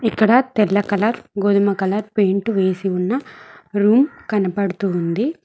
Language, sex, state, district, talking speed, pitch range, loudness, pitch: Telugu, female, Telangana, Mahabubabad, 110 wpm, 195-220 Hz, -18 LUFS, 205 Hz